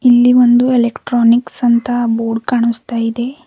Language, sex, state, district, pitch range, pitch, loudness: Kannada, female, Karnataka, Bidar, 235-245 Hz, 240 Hz, -13 LUFS